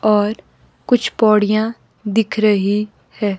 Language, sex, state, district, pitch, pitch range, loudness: Hindi, female, Himachal Pradesh, Shimla, 215 Hz, 205-220 Hz, -17 LUFS